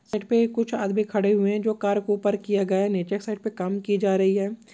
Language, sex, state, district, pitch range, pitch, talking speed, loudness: Marwari, female, Rajasthan, Nagaur, 200-215 Hz, 205 Hz, 290 wpm, -24 LUFS